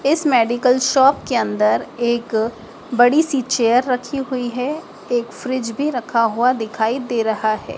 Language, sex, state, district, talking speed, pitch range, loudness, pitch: Hindi, female, Madhya Pradesh, Dhar, 160 wpm, 230-260 Hz, -18 LUFS, 245 Hz